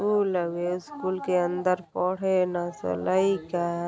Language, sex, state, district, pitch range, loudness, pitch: Hindi, female, Uttar Pradesh, Gorakhpur, 175-185 Hz, -27 LUFS, 180 Hz